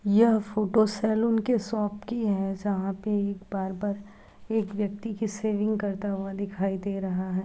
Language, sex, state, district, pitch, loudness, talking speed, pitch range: Hindi, female, Uttar Pradesh, Hamirpur, 205 Hz, -28 LUFS, 170 wpm, 195-215 Hz